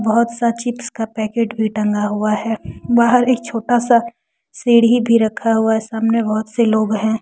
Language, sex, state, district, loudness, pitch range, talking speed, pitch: Hindi, female, Jharkhand, Deoghar, -17 LUFS, 220-235 Hz, 175 wpm, 230 Hz